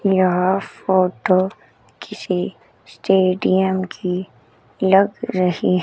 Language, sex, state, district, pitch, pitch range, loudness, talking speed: Hindi, female, Chandigarh, Chandigarh, 185 Hz, 180-190 Hz, -19 LUFS, 80 wpm